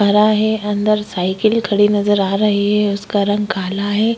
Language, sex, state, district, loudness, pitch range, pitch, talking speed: Hindi, female, Chhattisgarh, Korba, -16 LUFS, 200-215 Hz, 205 Hz, 185 wpm